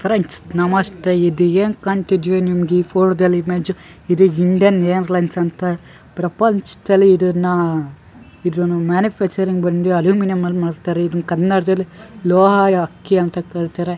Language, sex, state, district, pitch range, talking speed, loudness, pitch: Kannada, male, Karnataka, Gulbarga, 175-190 Hz, 115 wpm, -16 LUFS, 180 Hz